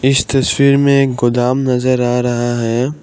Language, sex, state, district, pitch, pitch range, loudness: Hindi, male, Assam, Kamrup Metropolitan, 125 Hz, 120-135 Hz, -14 LUFS